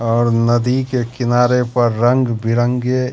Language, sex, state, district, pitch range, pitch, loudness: Hindi, male, Bihar, Katihar, 120-125 Hz, 120 Hz, -16 LUFS